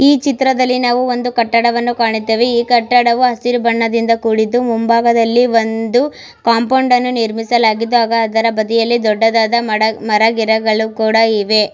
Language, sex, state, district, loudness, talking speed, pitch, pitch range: Kannada, female, Karnataka, Mysore, -13 LUFS, 125 wpm, 230 Hz, 225-245 Hz